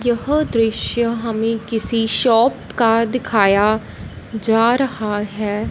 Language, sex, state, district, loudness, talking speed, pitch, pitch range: Hindi, female, Punjab, Fazilka, -17 LUFS, 105 wpm, 225 Hz, 220-235 Hz